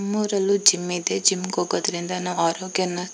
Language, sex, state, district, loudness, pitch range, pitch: Kannada, female, Karnataka, Chamarajanagar, -22 LUFS, 180-195 Hz, 185 Hz